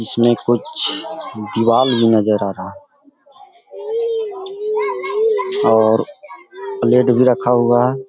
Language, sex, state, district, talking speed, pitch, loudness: Hindi, male, Bihar, Gaya, 105 wpm, 130 Hz, -16 LUFS